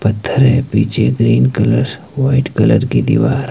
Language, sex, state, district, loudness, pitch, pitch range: Hindi, male, Himachal Pradesh, Shimla, -13 LUFS, 130 Hz, 110-135 Hz